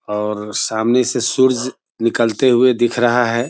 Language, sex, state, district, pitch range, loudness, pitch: Hindi, male, Bihar, Sitamarhi, 115-125 Hz, -16 LUFS, 120 Hz